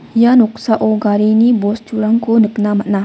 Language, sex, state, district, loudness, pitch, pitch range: Garo, female, Meghalaya, West Garo Hills, -13 LUFS, 220 Hz, 210-230 Hz